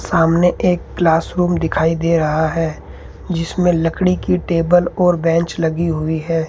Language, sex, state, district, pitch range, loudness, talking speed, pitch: Hindi, male, Rajasthan, Bikaner, 160-175 Hz, -16 LUFS, 155 wpm, 165 Hz